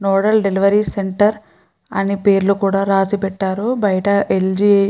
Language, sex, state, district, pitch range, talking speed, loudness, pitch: Telugu, female, Andhra Pradesh, Guntur, 195-205 Hz, 120 wpm, -16 LUFS, 200 Hz